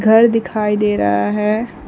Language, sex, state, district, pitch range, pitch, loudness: Hindi, female, West Bengal, Alipurduar, 210-225 Hz, 210 Hz, -15 LUFS